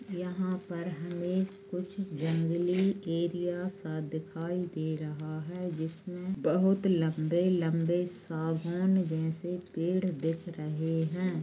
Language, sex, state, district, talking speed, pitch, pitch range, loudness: Hindi, female, Goa, North and South Goa, 115 wpm, 175 Hz, 160-185 Hz, -32 LUFS